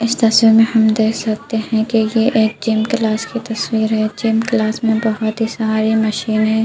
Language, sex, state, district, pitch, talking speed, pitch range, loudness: Hindi, female, Uttar Pradesh, Budaun, 220 Hz, 200 wpm, 220-225 Hz, -16 LUFS